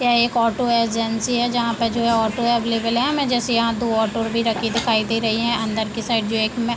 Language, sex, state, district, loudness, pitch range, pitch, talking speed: Hindi, female, Uttar Pradesh, Deoria, -20 LUFS, 225-235 Hz, 230 Hz, 255 wpm